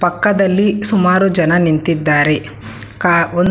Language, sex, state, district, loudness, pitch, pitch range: Kannada, female, Karnataka, Bangalore, -13 LUFS, 175 Hz, 155-190 Hz